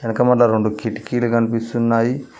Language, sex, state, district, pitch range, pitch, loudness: Telugu, male, Telangana, Mahabubabad, 115-120 Hz, 115 Hz, -18 LUFS